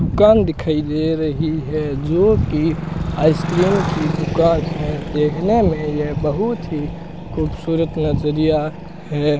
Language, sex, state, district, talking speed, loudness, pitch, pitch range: Hindi, male, Rajasthan, Bikaner, 120 wpm, -18 LUFS, 155 Hz, 150-165 Hz